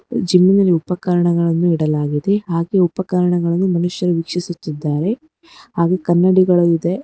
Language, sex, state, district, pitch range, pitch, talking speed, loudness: Kannada, female, Karnataka, Bangalore, 170-185 Hz, 175 Hz, 95 wpm, -16 LUFS